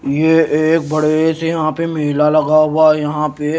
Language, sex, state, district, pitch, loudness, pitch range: Hindi, male, Haryana, Jhajjar, 155 Hz, -14 LUFS, 150-160 Hz